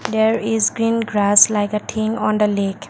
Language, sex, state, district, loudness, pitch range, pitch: English, female, Assam, Kamrup Metropolitan, -17 LUFS, 205-220 Hz, 215 Hz